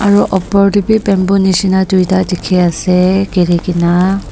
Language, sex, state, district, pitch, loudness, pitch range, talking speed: Nagamese, female, Nagaland, Dimapur, 190 Hz, -12 LUFS, 180-195 Hz, 125 wpm